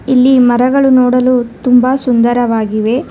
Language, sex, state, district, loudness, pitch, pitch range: Kannada, female, Karnataka, Bangalore, -10 LUFS, 250 Hz, 240-255 Hz